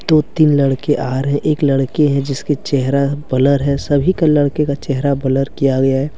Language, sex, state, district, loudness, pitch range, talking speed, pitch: Hindi, male, Jharkhand, Deoghar, -15 LUFS, 135-150 Hz, 215 wpm, 140 Hz